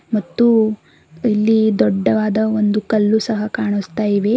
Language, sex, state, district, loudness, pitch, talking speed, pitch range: Kannada, female, Karnataka, Bidar, -17 LUFS, 215 Hz, 110 wpm, 210-220 Hz